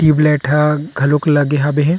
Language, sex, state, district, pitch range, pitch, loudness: Chhattisgarhi, male, Chhattisgarh, Rajnandgaon, 145-150 Hz, 150 Hz, -14 LUFS